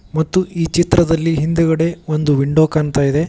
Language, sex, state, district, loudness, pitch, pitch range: Kannada, male, Karnataka, Koppal, -16 LUFS, 160 Hz, 155-165 Hz